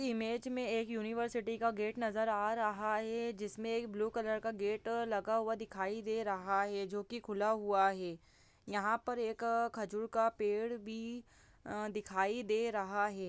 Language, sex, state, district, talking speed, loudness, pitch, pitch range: Hindi, female, Bihar, Saran, 185 wpm, -37 LUFS, 220 Hz, 205-230 Hz